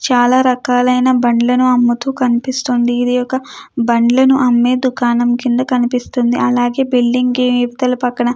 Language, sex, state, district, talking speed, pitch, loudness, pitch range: Telugu, female, Andhra Pradesh, Krishna, 120 wpm, 250 Hz, -14 LUFS, 245-255 Hz